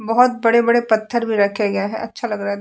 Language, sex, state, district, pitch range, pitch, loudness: Hindi, female, Uttar Pradesh, Etah, 205-235 Hz, 220 Hz, -18 LUFS